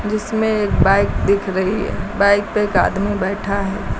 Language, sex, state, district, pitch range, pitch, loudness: Hindi, female, Uttar Pradesh, Lucknow, 195-210 Hz, 200 Hz, -18 LUFS